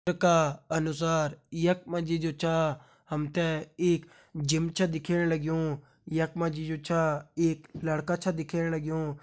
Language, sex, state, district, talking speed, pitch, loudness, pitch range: Hindi, male, Uttarakhand, Uttarkashi, 155 wpm, 160 Hz, -29 LUFS, 155-170 Hz